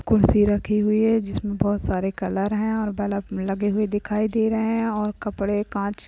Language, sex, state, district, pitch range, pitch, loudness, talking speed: Hindi, female, Uttar Pradesh, Hamirpur, 200-215 Hz, 205 Hz, -23 LUFS, 205 wpm